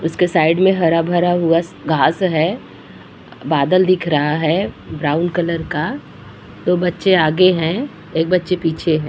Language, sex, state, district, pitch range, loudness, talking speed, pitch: Hindi, female, Uttar Pradesh, Muzaffarnagar, 155-180 Hz, -16 LUFS, 140 wpm, 165 Hz